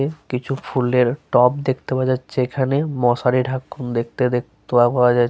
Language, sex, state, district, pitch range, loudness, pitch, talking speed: Bengali, male, Jharkhand, Sahebganj, 125-130 Hz, -20 LUFS, 125 Hz, 160 wpm